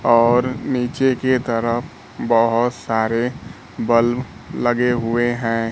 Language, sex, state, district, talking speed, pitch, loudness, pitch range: Hindi, male, Bihar, Kaimur, 105 wpm, 120 Hz, -19 LUFS, 115-125 Hz